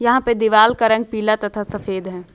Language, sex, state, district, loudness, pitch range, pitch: Hindi, female, Jharkhand, Ranchi, -17 LUFS, 205-230 Hz, 215 Hz